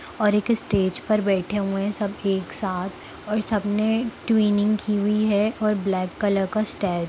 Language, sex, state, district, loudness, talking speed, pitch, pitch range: Hindi, female, Bihar, Samastipur, -23 LUFS, 175 wpm, 205 Hz, 195-215 Hz